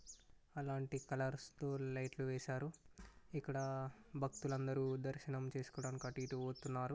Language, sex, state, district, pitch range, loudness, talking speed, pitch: Telugu, male, Andhra Pradesh, Guntur, 130-135 Hz, -45 LUFS, 105 wpm, 135 Hz